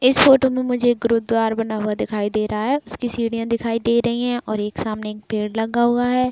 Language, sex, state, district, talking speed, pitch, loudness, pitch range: Hindi, female, Chhattisgarh, Bilaspur, 235 wpm, 230 Hz, -20 LUFS, 215-245 Hz